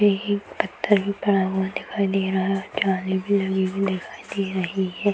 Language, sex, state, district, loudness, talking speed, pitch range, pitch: Hindi, female, Bihar, Bhagalpur, -24 LUFS, 200 wpm, 190-200 Hz, 195 Hz